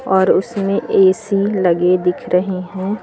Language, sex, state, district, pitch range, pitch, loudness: Hindi, female, Uttar Pradesh, Lucknow, 180-200 Hz, 190 Hz, -16 LUFS